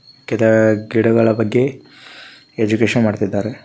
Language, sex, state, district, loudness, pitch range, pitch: Kannada, male, Karnataka, Koppal, -16 LUFS, 110-120 Hz, 110 Hz